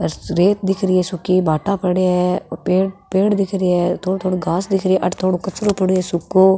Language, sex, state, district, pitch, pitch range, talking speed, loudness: Rajasthani, female, Rajasthan, Nagaur, 185 Hz, 180-190 Hz, 210 wpm, -18 LUFS